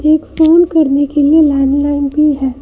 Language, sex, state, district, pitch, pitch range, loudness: Hindi, female, Karnataka, Bangalore, 295 Hz, 280-310 Hz, -11 LUFS